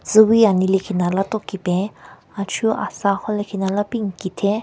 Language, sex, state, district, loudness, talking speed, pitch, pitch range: Rengma, female, Nagaland, Kohima, -20 LUFS, 155 wpm, 200 Hz, 190-215 Hz